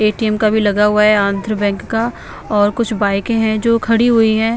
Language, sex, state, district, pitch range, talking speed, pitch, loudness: Hindi, female, Bihar, Patna, 205-225 Hz, 225 wpm, 215 Hz, -15 LUFS